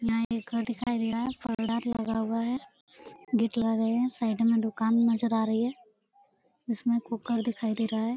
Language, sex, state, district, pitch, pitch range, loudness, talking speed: Hindi, female, Bihar, Araria, 230 Hz, 225-240 Hz, -29 LUFS, 200 wpm